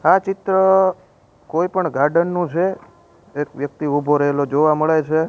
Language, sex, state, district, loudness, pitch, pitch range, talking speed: Gujarati, male, Gujarat, Gandhinagar, -18 LUFS, 160 Hz, 145-185 Hz, 160 wpm